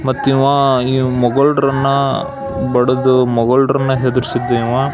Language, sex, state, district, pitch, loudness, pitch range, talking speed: Kannada, male, Karnataka, Belgaum, 130 Hz, -14 LUFS, 125-135 Hz, 95 wpm